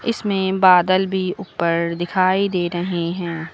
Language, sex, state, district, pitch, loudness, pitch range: Hindi, female, Uttar Pradesh, Lucknow, 185 Hz, -19 LUFS, 170-190 Hz